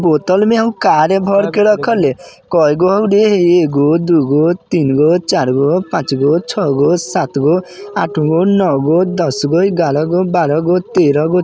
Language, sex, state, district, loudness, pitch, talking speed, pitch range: Bajjika, male, Bihar, Vaishali, -13 LUFS, 175 Hz, 115 wpm, 150-190 Hz